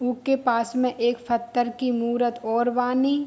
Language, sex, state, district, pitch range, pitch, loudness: Hindi, female, Bihar, Darbhanga, 235-250 Hz, 245 Hz, -24 LUFS